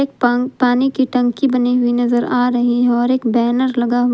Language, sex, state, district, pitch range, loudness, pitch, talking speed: Hindi, female, Jharkhand, Palamu, 240-255 Hz, -16 LUFS, 245 Hz, 245 wpm